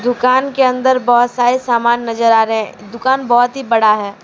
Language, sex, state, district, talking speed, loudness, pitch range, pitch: Hindi, female, Jharkhand, Deoghar, 210 wpm, -13 LUFS, 230-255 Hz, 240 Hz